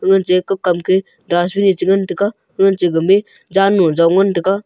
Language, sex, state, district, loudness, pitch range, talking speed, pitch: Wancho, male, Arunachal Pradesh, Longding, -15 LUFS, 180-195 Hz, 140 wpm, 190 Hz